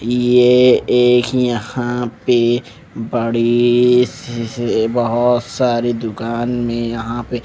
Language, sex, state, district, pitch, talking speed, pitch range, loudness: Hindi, male, Punjab, Pathankot, 120 Hz, 95 wpm, 115-125 Hz, -16 LUFS